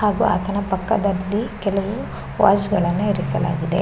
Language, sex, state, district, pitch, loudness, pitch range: Kannada, female, Karnataka, Shimoga, 200 Hz, -21 LUFS, 185-210 Hz